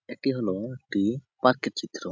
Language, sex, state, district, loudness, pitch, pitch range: Bengali, male, West Bengal, Jhargram, -27 LUFS, 125 Hz, 110-130 Hz